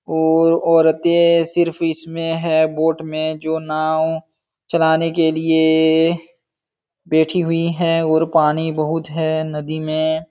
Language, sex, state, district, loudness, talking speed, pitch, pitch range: Hindi, male, Uttar Pradesh, Jalaun, -17 LUFS, 120 wpm, 160 Hz, 160-165 Hz